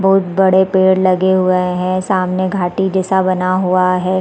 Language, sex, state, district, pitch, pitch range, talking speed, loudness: Hindi, female, Chhattisgarh, Raigarh, 185 Hz, 185-190 Hz, 170 wpm, -14 LUFS